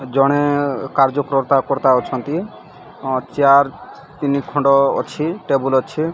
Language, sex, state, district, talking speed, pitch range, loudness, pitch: Odia, male, Odisha, Malkangiri, 100 wpm, 135-145 Hz, -17 LUFS, 140 Hz